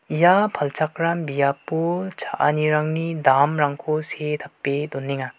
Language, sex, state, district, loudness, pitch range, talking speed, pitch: Garo, male, Meghalaya, West Garo Hills, -22 LUFS, 140-165 Hz, 90 wpm, 150 Hz